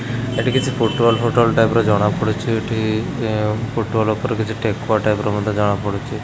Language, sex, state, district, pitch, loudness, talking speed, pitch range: Odia, male, Odisha, Khordha, 110 Hz, -18 LUFS, 185 wpm, 105-115 Hz